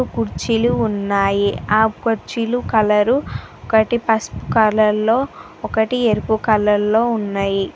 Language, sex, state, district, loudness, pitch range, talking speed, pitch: Telugu, female, Telangana, Mahabubabad, -17 LUFS, 210-230 Hz, 110 wpm, 220 Hz